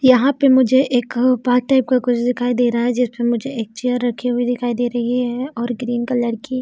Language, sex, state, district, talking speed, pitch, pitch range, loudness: Hindi, female, Chhattisgarh, Bilaspur, 235 wpm, 245 Hz, 240-255 Hz, -18 LUFS